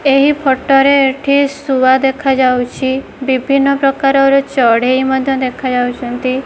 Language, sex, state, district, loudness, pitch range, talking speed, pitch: Odia, female, Odisha, Khordha, -13 LUFS, 255-275 Hz, 110 wpm, 270 Hz